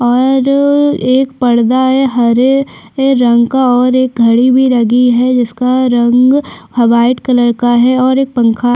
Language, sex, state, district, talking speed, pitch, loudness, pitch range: Hindi, female, Chhattisgarh, Sukma, 155 wpm, 250 Hz, -10 LUFS, 240-260 Hz